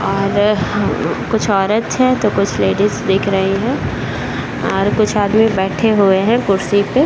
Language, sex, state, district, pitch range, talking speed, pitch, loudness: Hindi, male, Bihar, Saran, 195-220 Hz, 170 wpm, 205 Hz, -15 LUFS